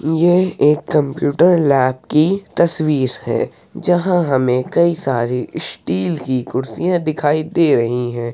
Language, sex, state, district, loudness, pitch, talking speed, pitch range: Hindi, male, Uttar Pradesh, Hamirpur, -17 LUFS, 150 Hz, 130 wpm, 130-170 Hz